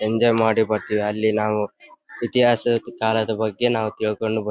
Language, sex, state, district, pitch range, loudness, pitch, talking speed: Kannada, male, Karnataka, Bellary, 110-115 Hz, -21 LUFS, 110 Hz, 145 wpm